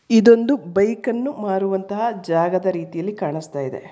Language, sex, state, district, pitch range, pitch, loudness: Kannada, female, Karnataka, Bangalore, 170-230 Hz, 195 Hz, -20 LUFS